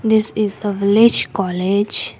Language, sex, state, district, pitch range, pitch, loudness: English, female, Assam, Kamrup Metropolitan, 190-215 Hz, 200 Hz, -17 LUFS